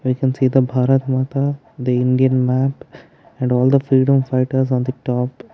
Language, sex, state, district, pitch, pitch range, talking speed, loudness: English, male, Karnataka, Bangalore, 130 Hz, 125-135 Hz, 185 wpm, -17 LUFS